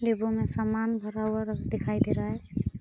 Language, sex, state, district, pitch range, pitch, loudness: Hindi, female, Bihar, Saran, 215-225 Hz, 220 Hz, -30 LUFS